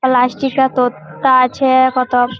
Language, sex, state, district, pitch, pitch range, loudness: Bengali, female, West Bengal, Malda, 255 Hz, 250-265 Hz, -14 LUFS